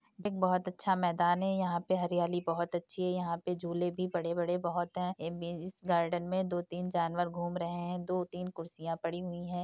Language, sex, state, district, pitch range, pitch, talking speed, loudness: Hindi, female, Uttar Pradesh, Deoria, 170-180 Hz, 175 Hz, 235 wpm, -34 LUFS